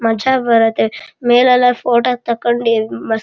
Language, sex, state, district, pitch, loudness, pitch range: Kannada, male, Karnataka, Shimoga, 240 Hz, -14 LUFS, 225-250 Hz